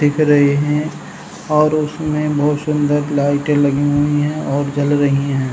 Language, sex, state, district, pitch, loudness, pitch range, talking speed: Hindi, male, Uttar Pradesh, Hamirpur, 145 Hz, -16 LUFS, 145-150 Hz, 165 wpm